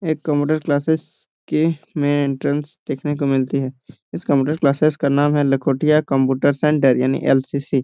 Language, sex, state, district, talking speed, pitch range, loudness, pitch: Hindi, male, Jharkhand, Jamtara, 170 wpm, 135-150 Hz, -19 LUFS, 145 Hz